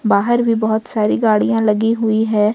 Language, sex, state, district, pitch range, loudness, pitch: Hindi, female, Jharkhand, Ranchi, 215-225 Hz, -16 LUFS, 220 Hz